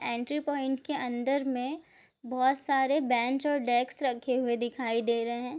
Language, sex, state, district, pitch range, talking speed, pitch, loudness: Hindi, female, Bihar, Madhepura, 240-280 Hz, 185 wpm, 260 Hz, -30 LUFS